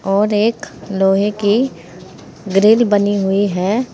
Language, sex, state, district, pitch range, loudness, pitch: Hindi, female, Uttar Pradesh, Saharanpur, 195-215 Hz, -15 LUFS, 205 Hz